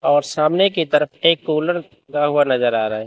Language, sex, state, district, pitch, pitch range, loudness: Hindi, male, Chandigarh, Chandigarh, 150 Hz, 140-165 Hz, -18 LUFS